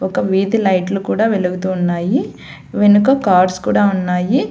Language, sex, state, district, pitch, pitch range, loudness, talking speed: Telugu, female, Telangana, Hyderabad, 190 Hz, 180-205 Hz, -15 LUFS, 120 wpm